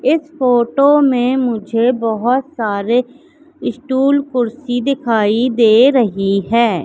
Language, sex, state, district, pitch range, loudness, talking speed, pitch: Hindi, female, Madhya Pradesh, Katni, 230-270 Hz, -15 LUFS, 105 wpm, 245 Hz